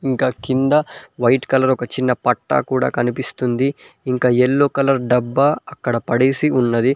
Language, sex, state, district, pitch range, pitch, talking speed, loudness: Telugu, male, Telangana, Mahabubabad, 125-135 Hz, 130 Hz, 140 wpm, -18 LUFS